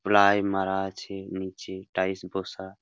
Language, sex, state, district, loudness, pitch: Bengali, male, West Bengal, Paschim Medinipur, -27 LUFS, 95 Hz